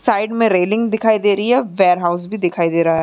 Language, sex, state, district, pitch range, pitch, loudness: Hindi, female, Uttar Pradesh, Muzaffarnagar, 175-220 Hz, 200 Hz, -16 LUFS